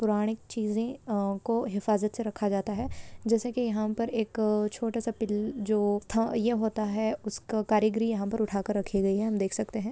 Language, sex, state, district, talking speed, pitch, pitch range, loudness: Hindi, female, Maharashtra, Pune, 205 wpm, 215 Hz, 210-225 Hz, -29 LUFS